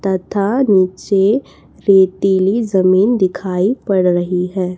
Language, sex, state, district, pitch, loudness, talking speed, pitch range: Hindi, female, Chhattisgarh, Raipur, 190 Hz, -15 LUFS, 100 wpm, 185-200 Hz